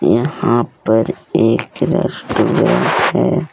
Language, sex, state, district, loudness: Hindi, male, Jharkhand, Deoghar, -15 LUFS